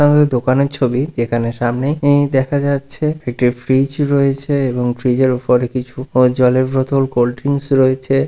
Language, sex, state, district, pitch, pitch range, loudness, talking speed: Bengali, male, West Bengal, Purulia, 130 Hz, 125-140 Hz, -16 LUFS, 150 wpm